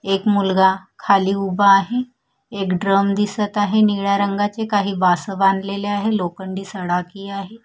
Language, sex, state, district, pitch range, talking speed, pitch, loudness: Marathi, female, Maharashtra, Mumbai Suburban, 195-205 Hz, 140 wpm, 195 Hz, -19 LUFS